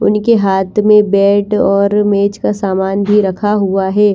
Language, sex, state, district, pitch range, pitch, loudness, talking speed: Hindi, female, Chandigarh, Chandigarh, 195-210 Hz, 200 Hz, -12 LUFS, 175 wpm